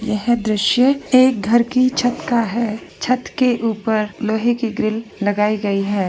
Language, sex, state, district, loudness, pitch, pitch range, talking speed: Hindi, female, Rajasthan, Churu, -18 LUFS, 230 Hz, 215-245 Hz, 165 wpm